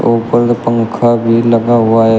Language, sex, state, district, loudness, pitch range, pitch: Hindi, male, Uttar Pradesh, Shamli, -11 LUFS, 115-120 Hz, 115 Hz